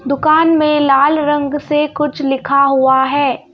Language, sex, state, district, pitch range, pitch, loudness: Hindi, female, Madhya Pradesh, Bhopal, 275-295 Hz, 290 Hz, -13 LUFS